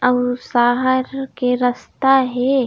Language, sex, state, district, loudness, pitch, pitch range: Chhattisgarhi, female, Chhattisgarh, Raigarh, -18 LUFS, 250 Hz, 245-265 Hz